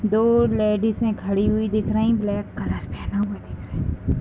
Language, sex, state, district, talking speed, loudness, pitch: Hindi, female, Uttar Pradesh, Deoria, 200 wpm, -22 LUFS, 210 Hz